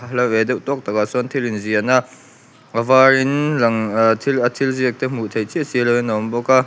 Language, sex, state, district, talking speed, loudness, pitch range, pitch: Mizo, male, Mizoram, Aizawl, 260 wpm, -18 LUFS, 115-130 Hz, 125 Hz